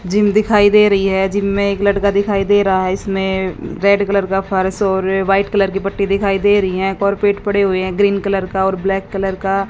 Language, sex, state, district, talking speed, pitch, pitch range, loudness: Hindi, female, Haryana, Jhajjar, 240 wpm, 195 Hz, 190-200 Hz, -15 LUFS